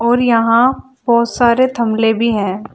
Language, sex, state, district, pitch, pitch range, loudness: Hindi, female, Uttar Pradesh, Shamli, 235 Hz, 225-245 Hz, -14 LUFS